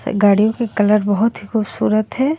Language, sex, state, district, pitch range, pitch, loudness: Hindi, female, Jharkhand, Ranchi, 205-230 Hz, 215 Hz, -16 LUFS